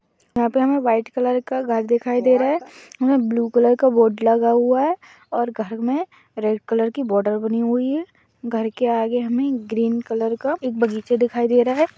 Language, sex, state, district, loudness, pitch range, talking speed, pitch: Magahi, female, Bihar, Gaya, -20 LUFS, 230-255 Hz, 210 wpm, 240 Hz